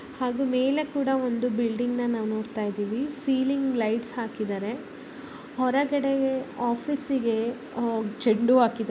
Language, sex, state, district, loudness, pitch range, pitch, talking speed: Kannada, male, Karnataka, Bellary, -26 LUFS, 230-270 Hz, 245 Hz, 120 wpm